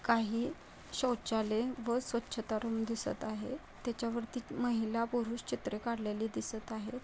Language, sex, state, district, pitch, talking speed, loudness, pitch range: Marathi, female, Maharashtra, Nagpur, 230 Hz, 130 wpm, -37 LUFS, 220-240 Hz